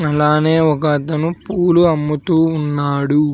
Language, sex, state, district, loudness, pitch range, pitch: Telugu, male, Andhra Pradesh, Sri Satya Sai, -15 LUFS, 150-165 Hz, 155 Hz